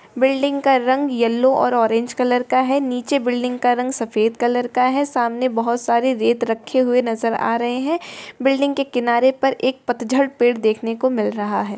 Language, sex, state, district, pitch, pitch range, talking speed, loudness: Hindi, female, Bihar, East Champaran, 245 Hz, 235-260 Hz, 195 wpm, -19 LUFS